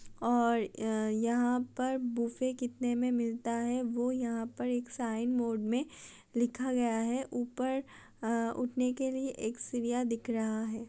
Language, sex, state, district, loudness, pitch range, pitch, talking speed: Hindi, female, Uttar Pradesh, Budaun, -33 LUFS, 230-250 Hz, 240 Hz, 150 wpm